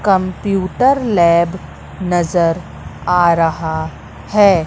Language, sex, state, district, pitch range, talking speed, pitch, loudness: Hindi, female, Madhya Pradesh, Katni, 170-195 Hz, 75 wpm, 180 Hz, -15 LUFS